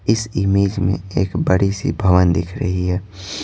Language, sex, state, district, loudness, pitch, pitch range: Hindi, male, Bihar, Patna, -18 LUFS, 95 Hz, 90-100 Hz